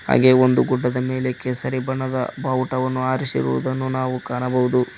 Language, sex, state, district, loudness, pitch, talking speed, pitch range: Kannada, male, Karnataka, Koppal, -21 LUFS, 130 Hz, 120 wpm, 125-130 Hz